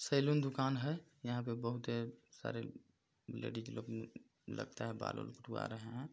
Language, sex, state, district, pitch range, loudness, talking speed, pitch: Hindi, male, Chhattisgarh, Balrampur, 115-135 Hz, -42 LUFS, 175 wpm, 120 Hz